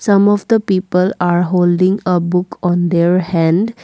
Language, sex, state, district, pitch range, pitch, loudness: English, female, Assam, Kamrup Metropolitan, 175-200 Hz, 180 Hz, -14 LUFS